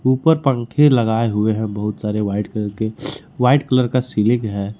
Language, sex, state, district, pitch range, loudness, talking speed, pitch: Hindi, male, Jharkhand, Ranchi, 105-130 Hz, -18 LUFS, 190 wpm, 115 Hz